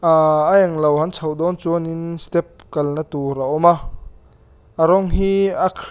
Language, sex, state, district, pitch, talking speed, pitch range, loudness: Mizo, male, Mizoram, Aizawl, 160 Hz, 195 wpm, 150-175 Hz, -18 LUFS